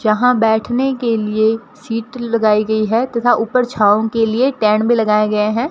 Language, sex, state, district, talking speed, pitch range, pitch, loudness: Hindi, female, Rajasthan, Bikaner, 190 wpm, 215-240 Hz, 225 Hz, -15 LUFS